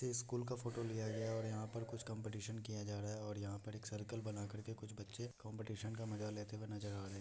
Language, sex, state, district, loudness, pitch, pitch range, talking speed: Hindi, male, Bihar, Muzaffarpur, -46 LUFS, 110 Hz, 105-115 Hz, 285 wpm